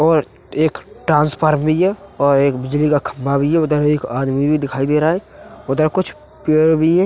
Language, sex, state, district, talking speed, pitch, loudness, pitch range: Hindi, male, Uttar Pradesh, Hamirpur, 210 wpm, 150 Hz, -17 LUFS, 140-160 Hz